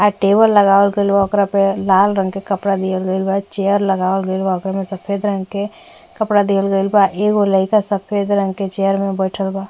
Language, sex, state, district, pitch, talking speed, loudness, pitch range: Bhojpuri, female, Uttar Pradesh, Ghazipur, 195 Hz, 225 wpm, -16 LUFS, 195-205 Hz